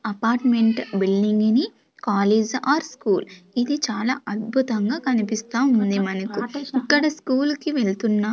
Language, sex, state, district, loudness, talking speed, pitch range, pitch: Telugu, female, Andhra Pradesh, Sri Satya Sai, -22 LUFS, 115 wpm, 210-265 Hz, 230 Hz